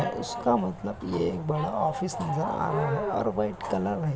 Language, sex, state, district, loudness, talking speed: Hindi, male, Uttar Pradesh, Jalaun, -28 LUFS, 230 wpm